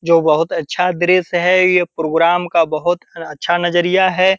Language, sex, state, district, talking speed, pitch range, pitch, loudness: Hindi, male, Bihar, Purnia, 165 wpm, 165-180 Hz, 175 Hz, -15 LUFS